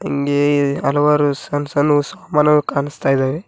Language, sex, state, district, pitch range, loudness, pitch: Kannada, male, Karnataka, Koppal, 140-150 Hz, -17 LUFS, 145 Hz